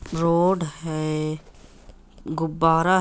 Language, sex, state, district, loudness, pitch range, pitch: Hindi, male, Chhattisgarh, Raigarh, -23 LUFS, 155-170 Hz, 160 Hz